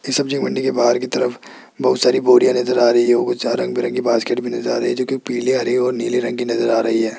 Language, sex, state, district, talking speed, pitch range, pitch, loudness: Hindi, male, Rajasthan, Jaipur, 290 wpm, 120-125 Hz, 120 Hz, -17 LUFS